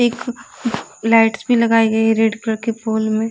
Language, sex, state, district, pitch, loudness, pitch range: Hindi, female, Delhi, New Delhi, 225 Hz, -17 LUFS, 220-235 Hz